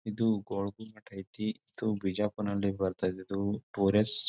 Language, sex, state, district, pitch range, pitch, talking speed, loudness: Kannada, male, Karnataka, Bijapur, 100-110 Hz, 100 Hz, 125 wpm, -29 LUFS